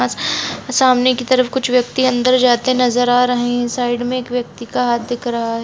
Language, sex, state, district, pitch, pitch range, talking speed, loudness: Hindi, female, Bihar, Muzaffarpur, 245 Hz, 240-255 Hz, 200 wpm, -16 LUFS